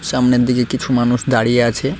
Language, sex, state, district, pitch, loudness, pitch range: Bengali, male, West Bengal, Cooch Behar, 125 Hz, -15 LUFS, 120-130 Hz